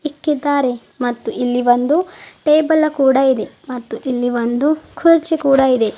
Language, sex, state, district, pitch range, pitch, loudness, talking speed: Kannada, female, Karnataka, Bidar, 245-305 Hz, 270 Hz, -16 LUFS, 130 wpm